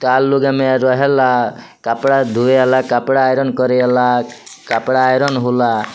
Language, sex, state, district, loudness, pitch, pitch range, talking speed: Bhojpuri, male, Bihar, Muzaffarpur, -14 LUFS, 130 Hz, 125-135 Hz, 170 wpm